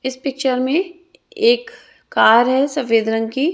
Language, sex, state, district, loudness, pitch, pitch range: Hindi, female, Chhattisgarh, Raipur, -17 LUFS, 275 Hz, 255-350 Hz